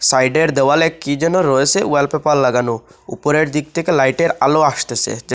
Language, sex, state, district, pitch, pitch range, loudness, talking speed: Bengali, male, Assam, Hailakandi, 150 Hz, 135-165 Hz, -15 LUFS, 145 wpm